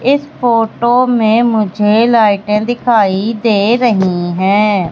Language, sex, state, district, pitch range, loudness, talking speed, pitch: Hindi, female, Madhya Pradesh, Katni, 205-240 Hz, -12 LUFS, 110 wpm, 220 Hz